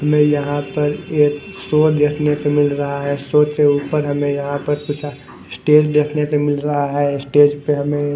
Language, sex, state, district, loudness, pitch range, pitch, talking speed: Hindi, male, Chandigarh, Chandigarh, -17 LUFS, 145-150 Hz, 145 Hz, 170 wpm